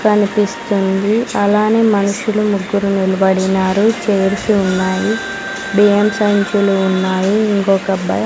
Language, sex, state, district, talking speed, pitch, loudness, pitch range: Telugu, female, Andhra Pradesh, Sri Satya Sai, 85 wpm, 200 Hz, -14 LUFS, 195-210 Hz